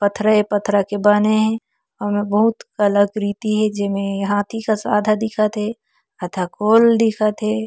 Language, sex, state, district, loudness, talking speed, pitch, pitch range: Chhattisgarhi, female, Chhattisgarh, Korba, -18 LUFS, 165 wpm, 210 Hz, 205-215 Hz